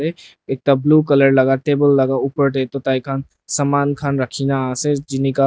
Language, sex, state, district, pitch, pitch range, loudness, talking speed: Nagamese, male, Nagaland, Dimapur, 135 Hz, 135-145 Hz, -17 LUFS, 155 wpm